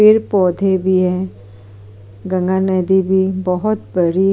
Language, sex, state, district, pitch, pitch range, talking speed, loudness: Hindi, female, Chhattisgarh, Kabirdham, 185 Hz, 175-190 Hz, 110 wpm, -16 LUFS